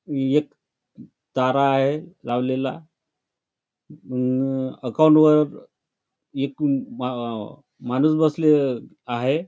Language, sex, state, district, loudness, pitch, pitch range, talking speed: Marathi, male, Maharashtra, Chandrapur, -21 LUFS, 135 Hz, 130-150 Hz, 75 wpm